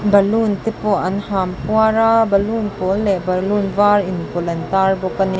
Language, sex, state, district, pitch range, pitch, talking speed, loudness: Mizo, female, Mizoram, Aizawl, 185-210 Hz, 200 Hz, 190 wpm, -17 LUFS